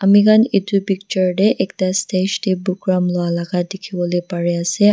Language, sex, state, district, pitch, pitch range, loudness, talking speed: Nagamese, female, Nagaland, Dimapur, 185 Hz, 180-200 Hz, -17 LUFS, 160 wpm